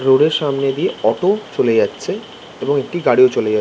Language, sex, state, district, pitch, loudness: Bengali, male, West Bengal, Kolkata, 180 Hz, -16 LUFS